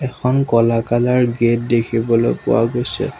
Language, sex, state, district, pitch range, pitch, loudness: Assamese, male, Assam, Sonitpur, 115-125 Hz, 120 Hz, -17 LUFS